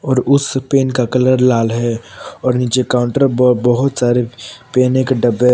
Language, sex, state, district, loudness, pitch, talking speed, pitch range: Hindi, male, Jharkhand, Palamu, -14 LUFS, 125 Hz, 175 wpm, 120-130 Hz